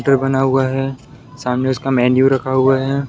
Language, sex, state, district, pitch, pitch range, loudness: Hindi, male, Bihar, Sitamarhi, 135 Hz, 130-135 Hz, -16 LUFS